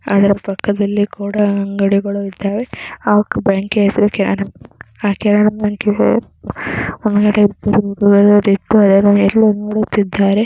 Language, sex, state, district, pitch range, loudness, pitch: Kannada, female, Karnataka, Mysore, 200-210 Hz, -14 LUFS, 205 Hz